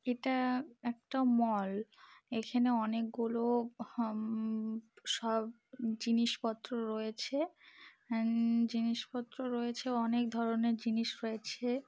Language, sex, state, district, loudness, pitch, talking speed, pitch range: Bengali, female, West Bengal, Malda, -35 LUFS, 230 Hz, 75 wpm, 225-245 Hz